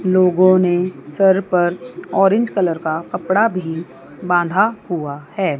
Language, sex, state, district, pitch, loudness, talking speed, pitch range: Hindi, female, Chandigarh, Chandigarh, 180 Hz, -17 LUFS, 130 wpm, 170-190 Hz